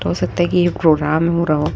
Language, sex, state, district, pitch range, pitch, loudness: Hindi, female, Chhattisgarh, Raipur, 155-175 Hz, 170 Hz, -16 LUFS